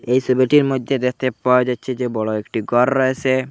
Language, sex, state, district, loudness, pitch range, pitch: Bengali, male, Assam, Hailakandi, -18 LUFS, 125-130 Hz, 130 Hz